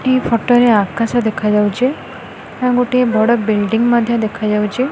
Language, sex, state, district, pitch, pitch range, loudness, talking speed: Odia, female, Odisha, Khordha, 230 Hz, 215-245 Hz, -15 LUFS, 135 wpm